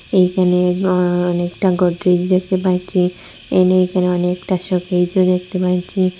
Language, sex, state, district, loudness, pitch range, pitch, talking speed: Bengali, female, Assam, Hailakandi, -16 LUFS, 180-185 Hz, 180 Hz, 115 wpm